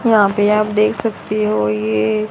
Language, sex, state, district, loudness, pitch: Hindi, female, Haryana, Rohtak, -16 LUFS, 210 Hz